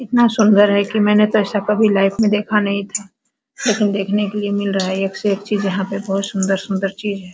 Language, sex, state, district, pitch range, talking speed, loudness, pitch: Hindi, female, Bihar, Araria, 195-210 Hz, 220 wpm, -17 LUFS, 205 Hz